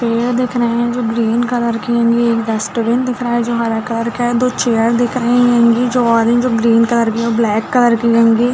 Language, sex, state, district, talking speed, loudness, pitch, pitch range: Hindi, female, Chhattisgarh, Bilaspur, 255 wpm, -14 LUFS, 235 Hz, 230-245 Hz